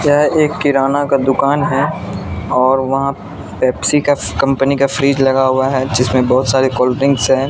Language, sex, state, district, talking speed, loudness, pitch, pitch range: Hindi, male, Bihar, Katihar, 175 wpm, -14 LUFS, 135 Hz, 130-140 Hz